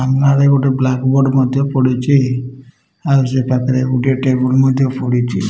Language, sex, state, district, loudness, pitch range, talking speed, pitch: Odia, male, Odisha, Malkangiri, -14 LUFS, 130-135 Hz, 140 wpm, 130 Hz